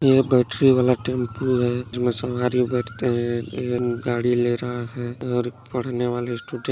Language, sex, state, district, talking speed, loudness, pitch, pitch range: Hindi, female, Chhattisgarh, Balrampur, 180 wpm, -23 LUFS, 125 Hz, 120-125 Hz